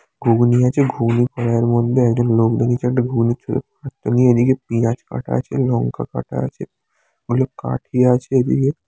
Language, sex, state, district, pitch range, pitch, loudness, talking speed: Bengali, male, West Bengal, Jhargram, 115-130 Hz, 120 Hz, -18 LUFS, 135 wpm